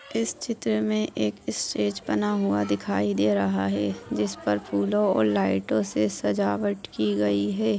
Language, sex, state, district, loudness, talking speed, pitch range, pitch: Hindi, female, West Bengal, Purulia, -25 LUFS, 160 wpm, 100-105 Hz, 105 Hz